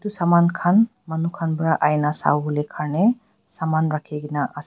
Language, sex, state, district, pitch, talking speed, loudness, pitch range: Nagamese, female, Nagaland, Dimapur, 160 Hz, 155 wpm, -21 LUFS, 150-175 Hz